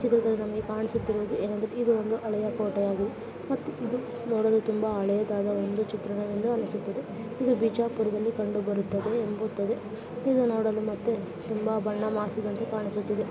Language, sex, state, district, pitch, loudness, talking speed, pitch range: Kannada, male, Karnataka, Bijapur, 215 Hz, -29 LUFS, 125 wpm, 210-230 Hz